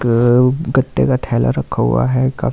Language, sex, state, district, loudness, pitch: Hindi, male, Delhi, New Delhi, -15 LUFS, 115 Hz